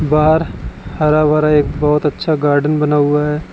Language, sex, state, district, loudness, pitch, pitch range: Hindi, male, Uttar Pradesh, Lalitpur, -14 LUFS, 150 Hz, 150-155 Hz